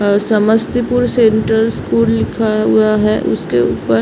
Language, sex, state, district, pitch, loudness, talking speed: Hindi, female, Bihar, Samastipur, 215 Hz, -14 LUFS, 135 wpm